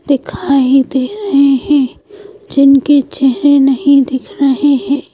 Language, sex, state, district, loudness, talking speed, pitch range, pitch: Hindi, female, Madhya Pradesh, Bhopal, -11 LUFS, 115 wpm, 270-290 Hz, 280 Hz